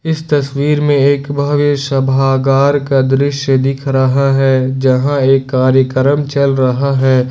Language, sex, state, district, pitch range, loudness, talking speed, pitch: Hindi, male, Jharkhand, Ranchi, 130-140 Hz, -12 LUFS, 140 wpm, 135 Hz